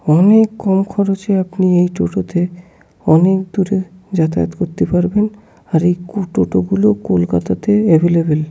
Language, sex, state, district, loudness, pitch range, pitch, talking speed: Bengali, male, West Bengal, Kolkata, -15 LUFS, 160-195 Hz, 180 Hz, 135 wpm